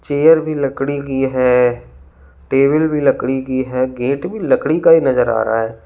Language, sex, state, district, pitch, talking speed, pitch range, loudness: Hindi, male, Uttar Pradesh, Lalitpur, 130 Hz, 195 wpm, 120-145 Hz, -15 LUFS